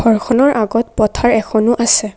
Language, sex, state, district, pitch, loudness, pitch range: Assamese, female, Assam, Kamrup Metropolitan, 225 Hz, -14 LUFS, 215-240 Hz